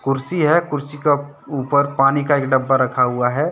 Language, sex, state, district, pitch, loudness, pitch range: Hindi, male, Jharkhand, Deoghar, 140 Hz, -18 LUFS, 135-145 Hz